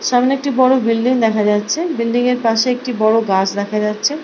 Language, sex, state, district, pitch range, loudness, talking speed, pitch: Bengali, female, West Bengal, Purulia, 210-255 Hz, -16 LUFS, 225 wpm, 235 Hz